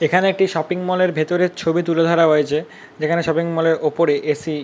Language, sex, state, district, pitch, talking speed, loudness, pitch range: Bengali, male, West Bengal, North 24 Parganas, 165 Hz, 230 wpm, -18 LUFS, 155-180 Hz